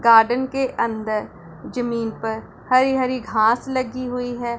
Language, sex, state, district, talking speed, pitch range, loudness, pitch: Hindi, female, Punjab, Pathankot, 145 wpm, 225-255 Hz, -21 LUFS, 240 Hz